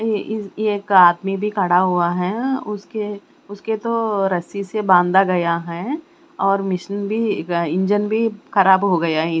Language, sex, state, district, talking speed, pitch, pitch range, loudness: Hindi, female, Chandigarh, Chandigarh, 160 wpm, 200 Hz, 180-215 Hz, -19 LUFS